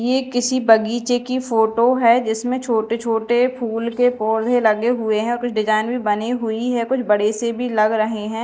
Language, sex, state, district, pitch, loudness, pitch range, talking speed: Hindi, female, Madhya Pradesh, Dhar, 235 Hz, -19 LUFS, 220-245 Hz, 200 wpm